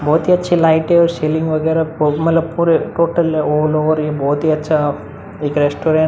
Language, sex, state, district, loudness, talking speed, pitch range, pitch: Hindi, male, Uttar Pradesh, Muzaffarnagar, -15 LUFS, 175 wpm, 155-165 Hz, 155 Hz